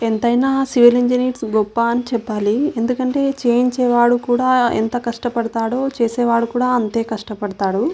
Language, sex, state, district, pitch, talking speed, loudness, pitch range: Telugu, female, Andhra Pradesh, Anantapur, 240 Hz, 115 wpm, -17 LUFS, 230-250 Hz